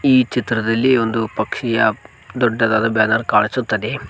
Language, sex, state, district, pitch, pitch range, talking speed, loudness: Kannada, male, Karnataka, Koppal, 115 Hz, 110-125 Hz, 100 wpm, -17 LUFS